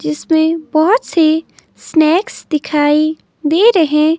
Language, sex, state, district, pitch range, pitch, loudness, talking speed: Hindi, female, Himachal Pradesh, Shimla, 305-330 Hz, 315 Hz, -13 LUFS, 100 wpm